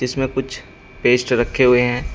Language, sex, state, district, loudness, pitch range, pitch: Hindi, male, Uttar Pradesh, Shamli, -17 LUFS, 120-130 Hz, 125 Hz